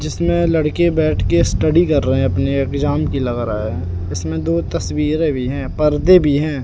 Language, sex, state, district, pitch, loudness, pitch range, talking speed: Hindi, male, Madhya Pradesh, Katni, 135 Hz, -17 LUFS, 90-155 Hz, 190 wpm